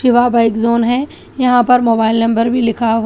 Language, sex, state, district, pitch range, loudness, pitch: Hindi, female, Telangana, Hyderabad, 230-245 Hz, -13 LUFS, 235 Hz